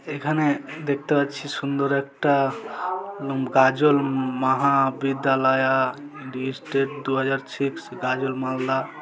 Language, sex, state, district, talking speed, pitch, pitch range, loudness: Bengali, male, West Bengal, Malda, 95 wpm, 135 Hz, 130-140 Hz, -23 LUFS